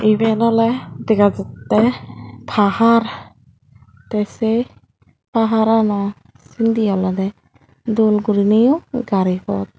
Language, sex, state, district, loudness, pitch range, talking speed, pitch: Chakma, female, Tripura, Dhalai, -17 LUFS, 185-225 Hz, 85 wpm, 215 Hz